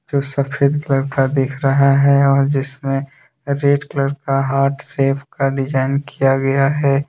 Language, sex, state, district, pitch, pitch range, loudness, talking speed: Hindi, male, Jharkhand, Deoghar, 140 Hz, 135-140 Hz, -16 LUFS, 160 wpm